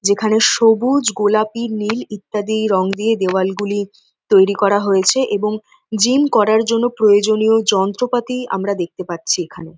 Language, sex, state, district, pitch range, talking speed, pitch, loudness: Bengali, female, West Bengal, North 24 Parganas, 200-225 Hz, 135 wpm, 210 Hz, -16 LUFS